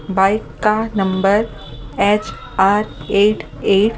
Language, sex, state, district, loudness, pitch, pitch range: Hindi, male, Delhi, New Delhi, -17 LUFS, 200 Hz, 190-215 Hz